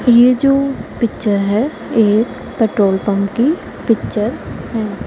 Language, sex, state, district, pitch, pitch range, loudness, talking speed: Hindi, female, Punjab, Pathankot, 230 Hz, 210-250 Hz, -16 LUFS, 120 wpm